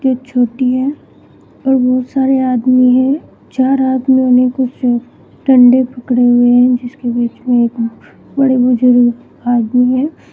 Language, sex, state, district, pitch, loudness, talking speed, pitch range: Hindi, female, Uttar Pradesh, Shamli, 250 Hz, -12 LUFS, 140 wpm, 245-260 Hz